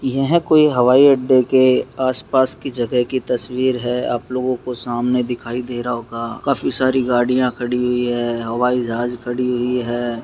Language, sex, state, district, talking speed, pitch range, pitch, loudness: Hindi, male, Bihar, Darbhanga, 175 wpm, 120-130 Hz, 125 Hz, -18 LUFS